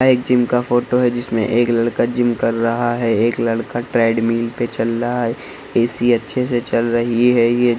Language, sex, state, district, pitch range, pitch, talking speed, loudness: Hindi, male, Bihar, Saharsa, 115-120 Hz, 120 Hz, 215 wpm, -17 LUFS